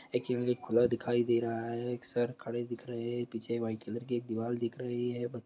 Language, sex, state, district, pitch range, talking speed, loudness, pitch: Hindi, male, Bihar, Kishanganj, 115-120 Hz, 230 wpm, -34 LUFS, 120 Hz